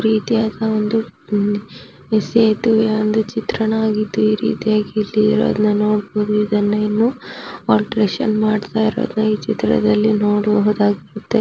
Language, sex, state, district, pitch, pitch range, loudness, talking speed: Kannada, female, Karnataka, Raichur, 215 Hz, 210-220 Hz, -17 LUFS, 75 wpm